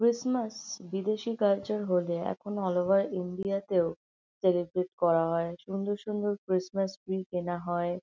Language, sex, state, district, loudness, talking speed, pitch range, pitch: Bengali, female, West Bengal, North 24 Parganas, -31 LUFS, 135 wpm, 180-205 Hz, 190 Hz